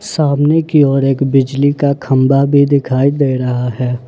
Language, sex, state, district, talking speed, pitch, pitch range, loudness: Hindi, male, Jharkhand, Ranchi, 175 wpm, 135 Hz, 130-140 Hz, -13 LUFS